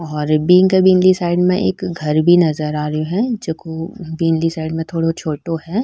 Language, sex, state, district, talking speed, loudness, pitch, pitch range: Rajasthani, female, Rajasthan, Nagaur, 195 wpm, -16 LUFS, 165 Hz, 160-180 Hz